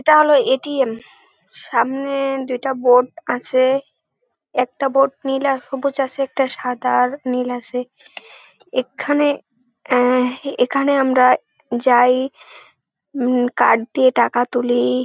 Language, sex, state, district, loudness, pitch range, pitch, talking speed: Bengali, female, West Bengal, Dakshin Dinajpur, -18 LUFS, 250-275 Hz, 260 Hz, 130 wpm